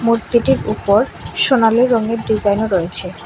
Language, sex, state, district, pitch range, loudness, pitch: Bengali, female, Tripura, West Tripura, 205-235 Hz, -15 LUFS, 225 Hz